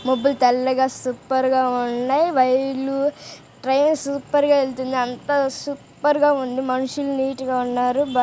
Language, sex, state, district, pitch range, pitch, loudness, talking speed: Telugu, female, Andhra Pradesh, Guntur, 255-280 Hz, 265 Hz, -20 LUFS, 125 wpm